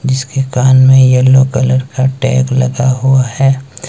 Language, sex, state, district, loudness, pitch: Hindi, male, Himachal Pradesh, Shimla, -10 LUFS, 130 Hz